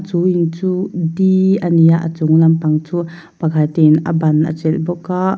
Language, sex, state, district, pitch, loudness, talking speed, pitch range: Mizo, female, Mizoram, Aizawl, 165 Hz, -15 LUFS, 200 wpm, 160-180 Hz